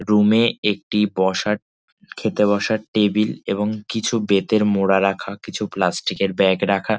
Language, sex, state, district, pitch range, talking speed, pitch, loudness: Bengali, male, West Bengal, Dakshin Dinajpur, 100-110 Hz, 155 wpm, 105 Hz, -20 LUFS